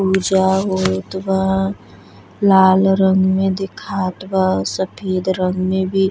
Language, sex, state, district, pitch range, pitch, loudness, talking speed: Bhojpuri, female, Uttar Pradesh, Deoria, 185-190 Hz, 190 Hz, -17 LUFS, 130 wpm